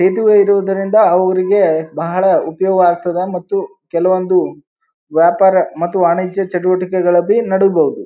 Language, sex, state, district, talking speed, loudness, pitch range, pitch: Kannada, male, Karnataka, Bijapur, 95 wpm, -14 LUFS, 175-195 Hz, 185 Hz